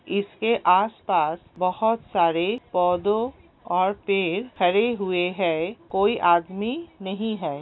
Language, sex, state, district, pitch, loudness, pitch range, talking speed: Hindi, female, Uttar Pradesh, Hamirpur, 195 Hz, -23 LUFS, 180-220 Hz, 120 wpm